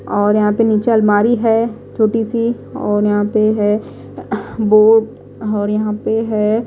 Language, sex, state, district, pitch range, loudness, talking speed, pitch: Hindi, female, Odisha, Malkangiri, 210-225 Hz, -15 LUFS, 155 wpm, 215 Hz